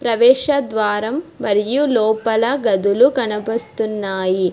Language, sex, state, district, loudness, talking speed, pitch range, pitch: Telugu, female, Telangana, Hyderabad, -17 LUFS, 80 wpm, 210-250 Hz, 220 Hz